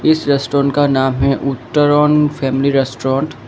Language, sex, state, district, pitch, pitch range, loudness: Hindi, male, Assam, Kamrup Metropolitan, 140 Hz, 135-145 Hz, -15 LUFS